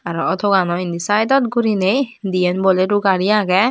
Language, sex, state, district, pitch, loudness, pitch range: Chakma, female, Tripura, Dhalai, 195 Hz, -17 LUFS, 185-215 Hz